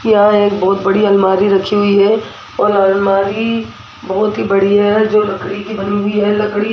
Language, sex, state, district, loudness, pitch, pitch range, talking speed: Hindi, female, Rajasthan, Jaipur, -13 LUFS, 205 Hz, 195-210 Hz, 195 wpm